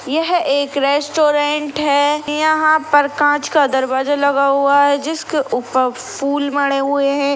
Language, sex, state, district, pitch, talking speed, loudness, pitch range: Hindi, female, Chhattisgarh, Sukma, 285 Hz, 145 wpm, -16 LUFS, 280-295 Hz